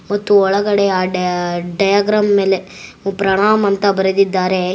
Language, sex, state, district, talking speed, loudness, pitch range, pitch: Kannada, female, Karnataka, Gulbarga, 115 wpm, -15 LUFS, 185-205 Hz, 195 Hz